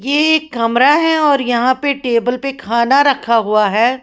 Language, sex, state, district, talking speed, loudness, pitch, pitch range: Hindi, female, Haryana, Jhajjar, 195 wpm, -14 LUFS, 255 Hz, 235-285 Hz